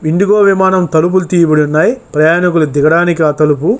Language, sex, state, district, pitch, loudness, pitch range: Telugu, male, Andhra Pradesh, Chittoor, 165 Hz, -10 LUFS, 155-185 Hz